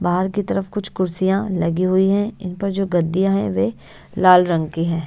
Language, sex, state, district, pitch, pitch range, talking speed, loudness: Hindi, female, Odisha, Nuapada, 185 Hz, 175-195 Hz, 215 wpm, -19 LUFS